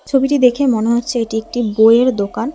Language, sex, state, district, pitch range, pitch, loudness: Bengali, female, West Bengal, Alipurduar, 225-255 Hz, 240 Hz, -14 LUFS